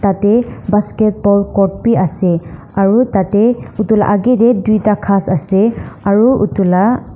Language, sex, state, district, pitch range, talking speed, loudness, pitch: Nagamese, female, Nagaland, Dimapur, 195-220 Hz, 140 wpm, -13 LUFS, 205 Hz